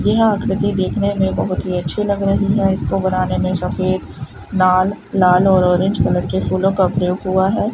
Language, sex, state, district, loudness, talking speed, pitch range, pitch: Hindi, female, Rajasthan, Bikaner, -17 LUFS, 195 wpm, 185-200 Hz, 190 Hz